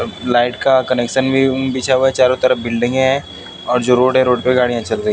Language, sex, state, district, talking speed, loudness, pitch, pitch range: Hindi, male, Haryana, Jhajjar, 235 wpm, -15 LUFS, 130 Hz, 125-130 Hz